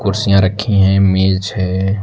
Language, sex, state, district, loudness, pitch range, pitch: Hindi, male, Uttar Pradesh, Lucknow, -14 LUFS, 95-100 Hz, 95 Hz